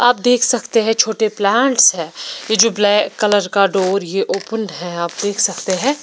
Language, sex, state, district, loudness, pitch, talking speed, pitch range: Hindi, female, Bihar, Patna, -15 LUFS, 205 Hz, 190 wpm, 190-230 Hz